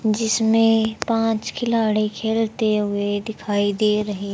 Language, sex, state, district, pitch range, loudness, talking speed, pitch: Hindi, male, Haryana, Jhajjar, 210-225 Hz, -20 LUFS, 110 wpm, 220 Hz